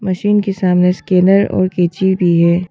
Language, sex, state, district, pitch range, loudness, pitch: Hindi, female, Arunachal Pradesh, Papum Pare, 180-195 Hz, -13 LUFS, 185 Hz